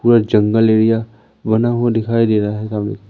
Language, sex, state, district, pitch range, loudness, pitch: Hindi, male, Madhya Pradesh, Umaria, 105-115 Hz, -15 LUFS, 110 Hz